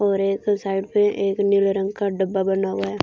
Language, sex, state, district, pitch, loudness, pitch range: Hindi, female, Delhi, New Delhi, 195 Hz, -21 LUFS, 195-200 Hz